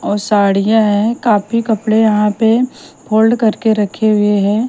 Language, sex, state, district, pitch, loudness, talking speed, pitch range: Hindi, female, Punjab, Kapurthala, 220 Hz, -13 LUFS, 155 wpm, 210-225 Hz